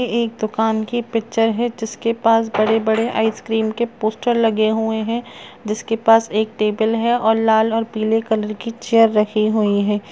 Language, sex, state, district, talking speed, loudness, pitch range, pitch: Hindi, female, Chhattisgarh, Raigarh, 180 wpm, -18 LUFS, 220-230 Hz, 225 Hz